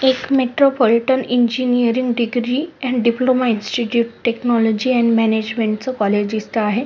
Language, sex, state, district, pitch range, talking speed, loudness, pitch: Marathi, female, Maharashtra, Sindhudurg, 225-255 Hz, 120 wpm, -17 LUFS, 240 Hz